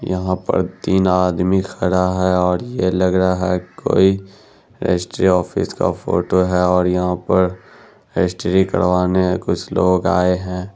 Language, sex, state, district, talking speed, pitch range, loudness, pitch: Hindi, male, Bihar, Araria, 140 wpm, 90-95 Hz, -17 LUFS, 90 Hz